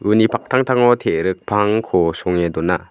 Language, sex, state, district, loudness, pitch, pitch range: Garo, male, Meghalaya, West Garo Hills, -17 LUFS, 105 Hz, 90-115 Hz